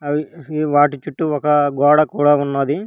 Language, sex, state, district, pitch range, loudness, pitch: Telugu, female, Telangana, Hyderabad, 145-155 Hz, -17 LUFS, 145 Hz